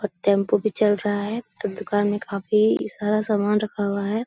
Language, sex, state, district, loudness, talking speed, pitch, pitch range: Hindi, female, Bihar, Supaul, -23 LUFS, 195 wpm, 205 Hz, 205-215 Hz